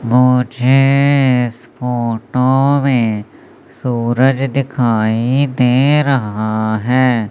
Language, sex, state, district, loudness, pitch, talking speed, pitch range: Hindi, male, Madhya Pradesh, Umaria, -14 LUFS, 125 Hz, 75 wpm, 115-135 Hz